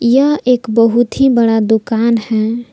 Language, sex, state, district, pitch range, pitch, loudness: Hindi, female, Jharkhand, Palamu, 225-245 Hz, 230 Hz, -13 LUFS